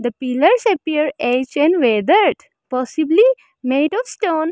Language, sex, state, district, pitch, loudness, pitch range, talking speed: English, female, Arunachal Pradesh, Lower Dibang Valley, 310 Hz, -17 LUFS, 255-375 Hz, 95 wpm